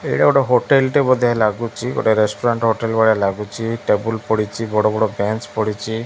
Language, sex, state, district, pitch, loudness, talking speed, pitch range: Odia, male, Odisha, Malkangiri, 110 Hz, -18 LUFS, 180 wpm, 110-115 Hz